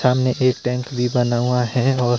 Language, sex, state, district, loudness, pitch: Hindi, male, Himachal Pradesh, Shimla, -19 LUFS, 125 Hz